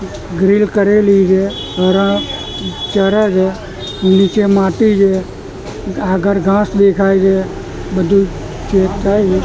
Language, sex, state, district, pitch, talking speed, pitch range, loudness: Gujarati, male, Gujarat, Gandhinagar, 195 Hz, 110 wpm, 190-200 Hz, -13 LUFS